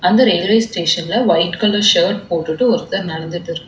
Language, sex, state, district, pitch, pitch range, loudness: Tamil, female, Tamil Nadu, Chennai, 180 Hz, 170-225 Hz, -15 LUFS